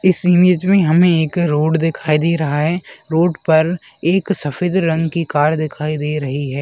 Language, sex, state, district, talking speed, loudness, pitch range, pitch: Hindi, female, West Bengal, Dakshin Dinajpur, 190 wpm, -16 LUFS, 150-175 Hz, 165 Hz